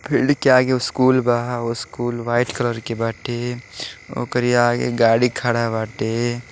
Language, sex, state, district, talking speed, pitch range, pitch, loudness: Bhojpuri, male, Uttar Pradesh, Deoria, 140 wpm, 115-125 Hz, 120 Hz, -20 LUFS